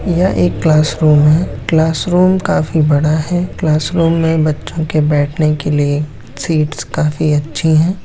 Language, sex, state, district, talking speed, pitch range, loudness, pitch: Hindi, male, Bihar, Lakhisarai, 140 wpm, 150-165 Hz, -14 LUFS, 155 Hz